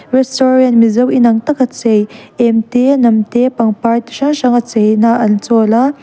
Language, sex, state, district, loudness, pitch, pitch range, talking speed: Mizo, female, Mizoram, Aizawl, -11 LUFS, 235 Hz, 225-255 Hz, 180 wpm